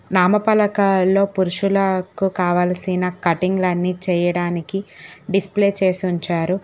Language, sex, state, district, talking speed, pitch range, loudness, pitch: Telugu, female, Telangana, Hyderabad, 80 wpm, 180-195 Hz, -19 LUFS, 185 Hz